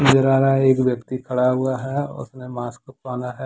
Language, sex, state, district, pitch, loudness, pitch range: Hindi, male, Jharkhand, Deoghar, 130 Hz, -20 LUFS, 125-135 Hz